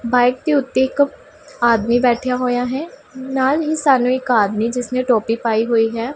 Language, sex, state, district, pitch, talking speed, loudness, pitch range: Punjabi, female, Punjab, Pathankot, 250 Hz, 175 wpm, -17 LUFS, 235-265 Hz